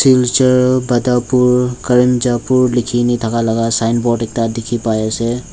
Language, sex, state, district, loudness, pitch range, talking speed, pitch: Nagamese, male, Nagaland, Dimapur, -14 LUFS, 115-125 Hz, 130 wpm, 120 Hz